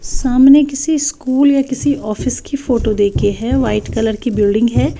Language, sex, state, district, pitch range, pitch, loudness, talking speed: Hindi, female, Bihar, West Champaran, 220-280 Hz, 260 Hz, -14 LUFS, 180 wpm